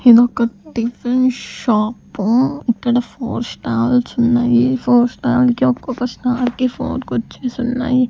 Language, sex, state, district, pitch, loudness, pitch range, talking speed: Telugu, female, Andhra Pradesh, Sri Satya Sai, 245 Hz, -17 LUFS, 230-250 Hz, 120 wpm